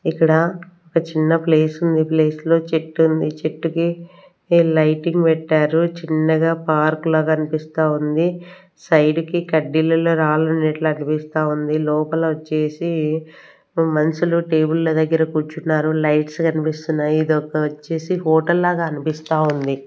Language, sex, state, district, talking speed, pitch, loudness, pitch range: Telugu, female, Andhra Pradesh, Sri Satya Sai, 100 wpm, 160 Hz, -18 LUFS, 155-165 Hz